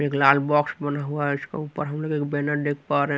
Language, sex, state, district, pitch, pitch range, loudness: Hindi, male, Haryana, Rohtak, 145 Hz, 145-150 Hz, -24 LUFS